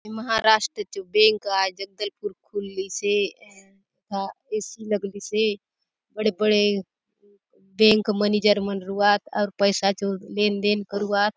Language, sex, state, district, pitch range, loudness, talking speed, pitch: Halbi, female, Chhattisgarh, Bastar, 200-215 Hz, -23 LUFS, 125 wpm, 205 Hz